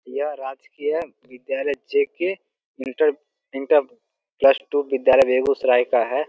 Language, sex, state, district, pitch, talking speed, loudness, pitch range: Hindi, male, Bihar, Begusarai, 135 Hz, 115 wpm, -21 LUFS, 130-155 Hz